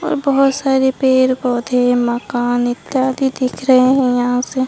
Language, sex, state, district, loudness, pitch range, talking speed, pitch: Hindi, female, Bihar, Katihar, -15 LUFS, 245-265 Hz, 155 wpm, 255 Hz